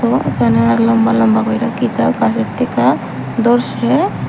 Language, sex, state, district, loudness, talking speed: Bengali, female, Tripura, Unakoti, -14 LUFS, 110 wpm